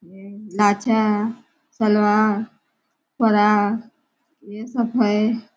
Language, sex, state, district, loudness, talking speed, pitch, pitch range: Hindi, female, Maharashtra, Nagpur, -19 LUFS, 65 wpm, 215 Hz, 210-235 Hz